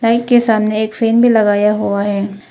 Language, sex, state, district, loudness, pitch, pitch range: Hindi, female, Arunachal Pradesh, Papum Pare, -13 LUFS, 215 Hz, 205-230 Hz